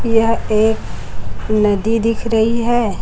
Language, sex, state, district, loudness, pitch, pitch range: Hindi, female, Chhattisgarh, Raipur, -16 LUFS, 220 Hz, 205-230 Hz